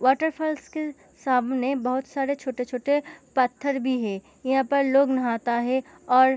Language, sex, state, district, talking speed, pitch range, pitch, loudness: Hindi, female, Bihar, Gopalganj, 150 wpm, 255-280 Hz, 265 Hz, -25 LUFS